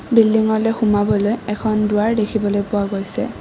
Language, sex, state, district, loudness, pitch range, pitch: Assamese, female, Assam, Kamrup Metropolitan, -18 LUFS, 205-220 Hz, 215 Hz